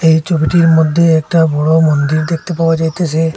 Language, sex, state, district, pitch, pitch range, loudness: Bengali, male, Assam, Hailakandi, 160 Hz, 155-165 Hz, -12 LUFS